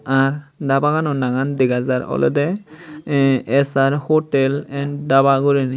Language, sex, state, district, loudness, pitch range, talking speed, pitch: Chakma, male, Tripura, Dhalai, -18 LUFS, 135-145 Hz, 135 wpm, 140 Hz